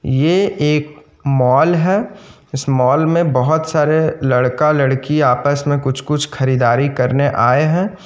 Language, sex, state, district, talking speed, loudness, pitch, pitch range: Hindi, male, Jharkhand, Ranchi, 125 wpm, -15 LUFS, 145 Hz, 135-160 Hz